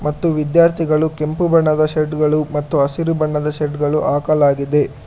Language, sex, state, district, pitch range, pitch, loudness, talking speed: Kannada, male, Karnataka, Bangalore, 150-155 Hz, 150 Hz, -16 LUFS, 140 wpm